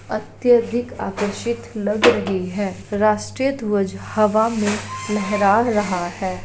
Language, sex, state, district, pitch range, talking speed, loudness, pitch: Hindi, female, Bihar, Jahanabad, 200-220 Hz, 110 wpm, -20 LUFS, 210 Hz